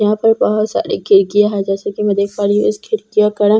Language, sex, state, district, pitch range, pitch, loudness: Hindi, female, Bihar, Katihar, 200-215 Hz, 210 Hz, -15 LUFS